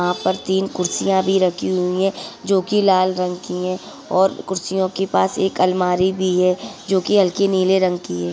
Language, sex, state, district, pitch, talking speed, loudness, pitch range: Hindi, female, Uttar Pradesh, Ghazipur, 185 Hz, 210 wpm, -19 LUFS, 180-190 Hz